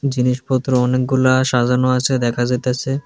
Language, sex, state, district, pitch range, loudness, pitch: Bengali, female, Tripura, West Tripura, 125-130 Hz, -17 LUFS, 130 Hz